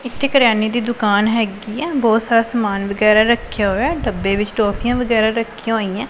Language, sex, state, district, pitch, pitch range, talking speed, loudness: Punjabi, female, Punjab, Pathankot, 225 Hz, 210-235 Hz, 175 wpm, -17 LUFS